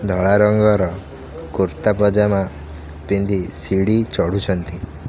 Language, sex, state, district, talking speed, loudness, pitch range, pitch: Odia, male, Odisha, Khordha, 80 wpm, -18 LUFS, 80-100 Hz, 95 Hz